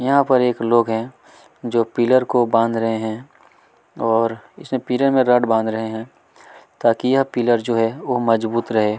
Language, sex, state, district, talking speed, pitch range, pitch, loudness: Hindi, male, Chhattisgarh, Kabirdham, 180 wpm, 115-125 Hz, 115 Hz, -19 LUFS